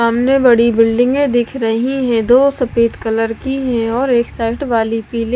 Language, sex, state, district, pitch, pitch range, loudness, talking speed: Hindi, female, Bihar, West Champaran, 235 Hz, 230-255 Hz, -14 LUFS, 180 wpm